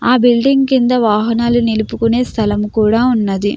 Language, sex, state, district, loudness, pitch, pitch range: Telugu, female, Andhra Pradesh, Krishna, -13 LUFS, 230 Hz, 215-245 Hz